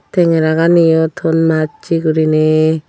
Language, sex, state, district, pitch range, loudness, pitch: Chakma, female, Tripura, Dhalai, 155-165 Hz, -13 LUFS, 160 Hz